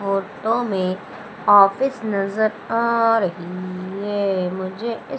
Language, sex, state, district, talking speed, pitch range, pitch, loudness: Hindi, female, Madhya Pradesh, Umaria, 105 wpm, 185-225 Hz, 200 Hz, -21 LUFS